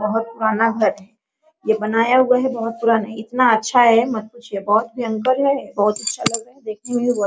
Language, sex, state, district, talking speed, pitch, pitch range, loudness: Hindi, female, Bihar, Araria, 230 wpm, 230 Hz, 220-245 Hz, -18 LUFS